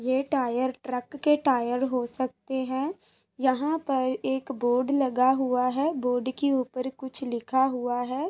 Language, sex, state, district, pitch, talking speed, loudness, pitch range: Hindi, female, Uttar Pradesh, Gorakhpur, 260 Hz, 160 wpm, -27 LUFS, 250-270 Hz